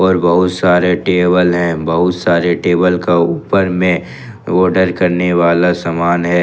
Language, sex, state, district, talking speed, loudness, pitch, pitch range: Hindi, male, Jharkhand, Ranchi, 150 wpm, -13 LUFS, 90 Hz, 85-90 Hz